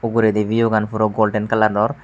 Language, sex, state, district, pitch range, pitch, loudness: Chakma, male, Tripura, West Tripura, 105-115 Hz, 110 Hz, -18 LUFS